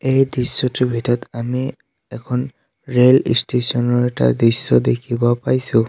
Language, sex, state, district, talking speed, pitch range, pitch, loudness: Assamese, male, Assam, Sonitpur, 120 wpm, 120-130 Hz, 125 Hz, -16 LUFS